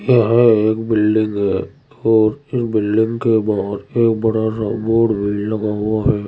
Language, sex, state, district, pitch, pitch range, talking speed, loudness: Hindi, male, Uttar Pradesh, Saharanpur, 110 Hz, 105-115 Hz, 145 wpm, -17 LUFS